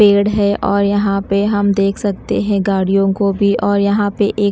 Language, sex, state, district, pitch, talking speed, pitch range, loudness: Hindi, female, Chhattisgarh, Raipur, 200 Hz, 210 wpm, 200-205 Hz, -15 LUFS